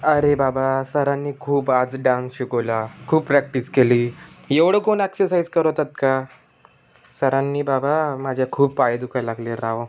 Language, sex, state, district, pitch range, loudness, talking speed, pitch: Marathi, male, Maharashtra, Pune, 125-145 Hz, -20 LUFS, 140 wpm, 135 Hz